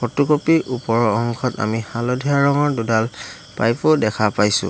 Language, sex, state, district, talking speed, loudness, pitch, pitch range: Assamese, male, Assam, Hailakandi, 165 wpm, -19 LUFS, 120 Hz, 110-140 Hz